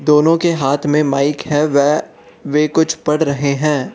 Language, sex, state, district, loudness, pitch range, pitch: Hindi, male, Arunachal Pradesh, Lower Dibang Valley, -15 LUFS, 140-155 Hz, 150 Hz